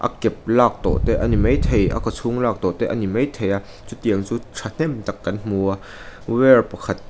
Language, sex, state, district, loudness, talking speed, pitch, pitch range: Mizo, male, Mizoram, Aizawl, -20 LUFS, 220 wpm, 105 Hz, 100-120 Hz